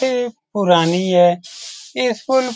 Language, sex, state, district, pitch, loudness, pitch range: Hindi, male, Bihar, Saran, 215 Hz, -17 LUFS, 175-250 Hz